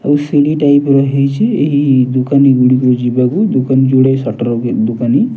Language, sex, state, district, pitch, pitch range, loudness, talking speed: Odia, male, Odisha, Nuapada, 135 Hz, 125-145 Hz, -12 LUFS, 145 wpm